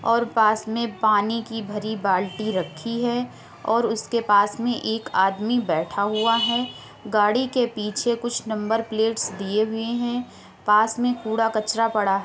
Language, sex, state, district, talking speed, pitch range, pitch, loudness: Hindi, female, Uttar Pradesh, Hamirpur, 160 wpm, 210-235 Hz, 220 Hz, -23 LUFS